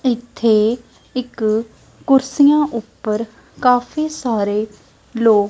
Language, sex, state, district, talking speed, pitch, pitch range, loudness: Punjabi, female, Punjab, Kapurthala, 85 wpm, 235 Hz, 220-255 Hz, -18 LUFS